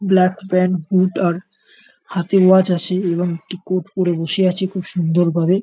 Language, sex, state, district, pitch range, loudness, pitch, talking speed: Bengali, male, West Bengal, North 24 Parganas, 175-185 Hz, -17 LUFS, 185 Hz, 170 wpm